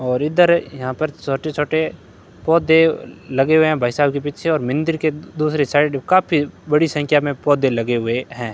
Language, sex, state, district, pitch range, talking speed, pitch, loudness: Hindi, male, Rajasthan, Bikaner, 135-160 Hz, 190 wpm, 150 Hz, -18 LUFS